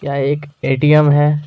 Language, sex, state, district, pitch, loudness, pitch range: Hindi, male, Chhattisgarh, Kabirdham, 145 Hz, -14 LUFS, 140-150 Hz